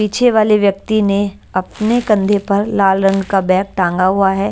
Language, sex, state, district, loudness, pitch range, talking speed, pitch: Hindi, female, Bihar, West Champaran, -14 LUFS, 195-215 Hz, 185 wpm, 200 Hz